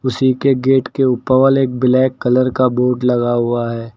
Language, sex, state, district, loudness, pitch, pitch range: Hindi, male, Uttar Pradesh, Lucknow, -15 LUFS, 130 Hz, 125-130 Hz